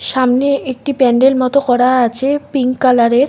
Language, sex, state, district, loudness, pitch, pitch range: Bengali, female, West Bengal, North 24 Parganas, -13 LUFS, 260 Hz, 250-275 Hz